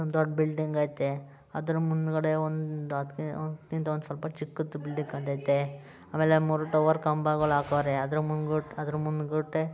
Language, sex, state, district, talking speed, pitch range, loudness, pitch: Kannada, male, Karnataka, Mysore, 135 wpm, 145-155 Hz, -29 LUFS, 155 Hz